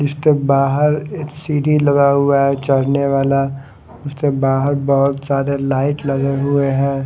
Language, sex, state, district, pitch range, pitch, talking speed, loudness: Hindi, male, Haryana, Rohtak, 135-145 Hz, 140 Hz, 145 wpm, -16 LUFS